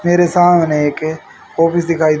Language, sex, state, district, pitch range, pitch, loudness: Hindi, male, Haryana, Charkhi Dadri, 155-175 Hz, 165 Hz, -14 LUFS